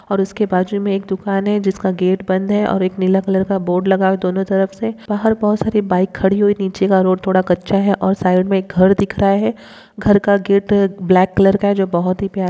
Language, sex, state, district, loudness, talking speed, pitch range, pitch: Hindi, female, Bihar, Darbhanga, -16 LUFS, 260 wpm, 190-200 Hz, 195 Hz